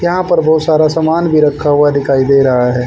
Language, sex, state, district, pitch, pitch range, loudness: Hindi, male, Haryana, Charkhi Dadri, 150 Hz, 140-160 Hz, -11 LUFS